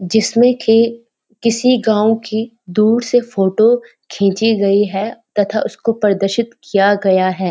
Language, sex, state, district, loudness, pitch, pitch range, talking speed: Hindi, female, Uttarakhand, Uttarkashi, -15 LUFS, 220 Hz, 200-230 Hz, 135 wpm